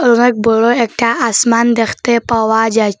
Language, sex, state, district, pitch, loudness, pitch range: Bengali, female, Assam, Hailakandi, 230 Hz, -12 LUFS, 225-235 Hz